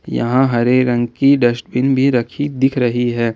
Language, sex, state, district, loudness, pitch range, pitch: Hindi, male, Jharkhand, Ranchi, -15 LUFS, 120-135 Hz, 125 Hz